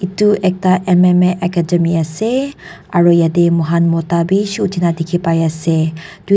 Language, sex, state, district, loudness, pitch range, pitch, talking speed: Nagamese, female, Nagaland, Dimapur, -14 LUFS, 165-185 Hz, 175 Hz, 125 wpm